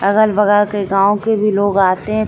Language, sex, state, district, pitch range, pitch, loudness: Hindi, female, Bihar, Saran, 200-210 Hz, 205 Hz, -14 LUFS